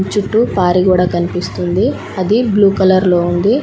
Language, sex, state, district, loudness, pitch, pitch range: Telugu, female, Telangana, Mahabubabad, -13 LUFS, 185 Hz, 180-205 Hz